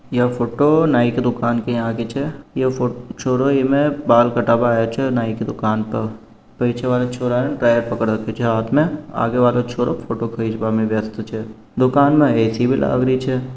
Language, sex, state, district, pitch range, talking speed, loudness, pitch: Marwari, male, Rajasthan, Nagaur, 115-130 Hz, 190 wpm, -18 LUFS, 120 Hz